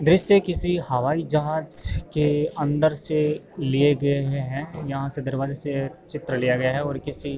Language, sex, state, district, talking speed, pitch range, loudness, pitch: Hindi, male, Uttar Pradesh, Varanasi, 180 wpm, 140-155 Hz, -24 LUFS, 145 Hz